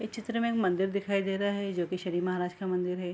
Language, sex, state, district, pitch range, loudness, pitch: Hindi, female, Bihar, Araria, 180-200 Hz, -31 LUFS, 190 Hz